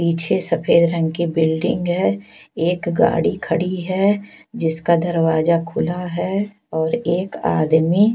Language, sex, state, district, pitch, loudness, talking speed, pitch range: Hindi, female, Chhattisgarh, Raipur, 170 Hz, -19 LUFS, 125 wpm, 165-185 Hz